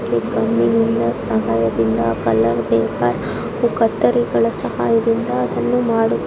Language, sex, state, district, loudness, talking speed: Kannada, female, Karnataka, Raichur, -18 LUFS, 105 wpm